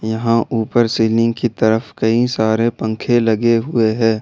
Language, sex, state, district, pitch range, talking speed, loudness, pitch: Hindi, male, Jharkhand, Ranchi, 110-115 Hz, 170 wpm, -16 LUFS, 115 Hz